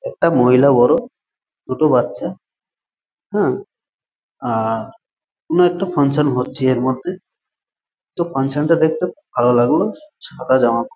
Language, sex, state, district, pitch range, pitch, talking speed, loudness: Bengali, male, West Bengal, Malda, 125-175 Hz, 135 Hz, 130 wpm, -17 LUFS